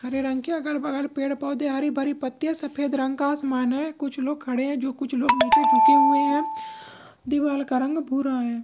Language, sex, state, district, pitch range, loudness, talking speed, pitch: Maithili, female, Bihar, Begusarai, 270-295 Hz, -23 LUFS, 220 wpm, 280 Hz